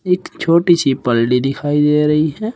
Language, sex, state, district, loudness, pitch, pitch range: Hindi, male, Uttar Pradesh, Shamli, -15 LUFS, 150 Hz, 135-170 Hz